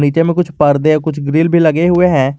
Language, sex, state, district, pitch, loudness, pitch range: Hindi, male, Jharkhand, Garhwa, 155 Hz, -12 LUFS, 145-170 Hz